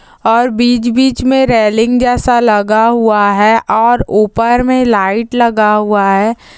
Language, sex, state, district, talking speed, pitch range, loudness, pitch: Hindi, female, Rajasthan, Nagaur, 145 wpm, 210-245 Hz, -11 LUFS, 230 Hz